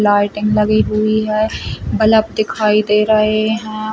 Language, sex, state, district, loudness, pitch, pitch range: Hindi, female, Chhattisgarh, Rajnandgaon, -15 LUFS, 215 Hz, 210-215 Hz